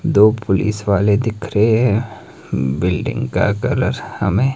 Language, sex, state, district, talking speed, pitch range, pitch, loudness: Hindi, male, Himachal Pradesh, Shimla, 130 wpm, 95-110 Hz, 105 Hz, -17 LUFS